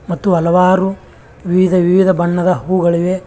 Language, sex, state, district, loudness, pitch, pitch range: Kannada, male, Karnataka, Bangalore, -13 LUFS, 180 Hz, 175-185 Hz